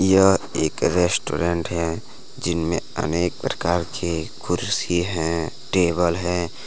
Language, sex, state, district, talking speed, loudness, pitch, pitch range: Hindi, male, Jharkhand, Deoghar, 115 wpm, -22 LUFS, 85 Hz, 85-90 Hz